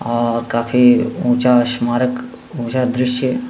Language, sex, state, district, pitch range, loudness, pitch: Hindi, male, Bihar, Saran, 120-125 Hz, -16 LUFS, 125 Hz